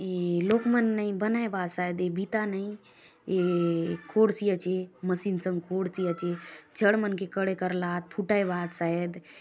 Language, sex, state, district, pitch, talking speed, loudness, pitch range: Halbi, female, Chhattisgarh, Bastar, 185 Hz, 185 wpm, -28 LUFS, 175-200 Hz